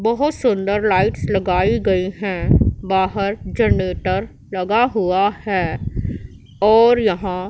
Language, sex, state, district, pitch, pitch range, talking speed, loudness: Hindi, female, Punjab, Pathankot, 195 Hz, 180-215 Hz, 105 wpm, -18 LUFS